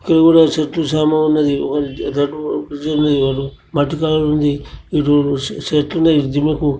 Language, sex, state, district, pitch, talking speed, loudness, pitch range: Telugu, male, Telangana, Karimnagar, 150 Hz, 140 wpm, -16 LUFS, 145-155 Hz